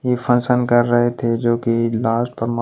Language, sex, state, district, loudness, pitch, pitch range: Hindi, male, Maharashtra, Washim, -18 LUFS, 120 Hz, 115-120 Hz